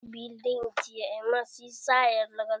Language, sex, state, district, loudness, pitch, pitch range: Maithili, female, Bihar, Darbhanga, -28 LUFS, 245 Hz, 235-305 Hz